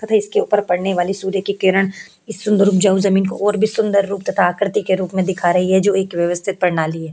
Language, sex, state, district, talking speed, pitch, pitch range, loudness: Hindi, female, Uttar Pradesh, Hamirpur, 250 wpm, 195 Hz, 185-200 Hz, -17 LUFS